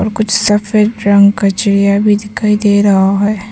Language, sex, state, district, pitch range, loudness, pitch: Hindi, female, Arunachal Pradesh, Papum Pare, 200-210 Hz, -11 LUFS, 205 Hz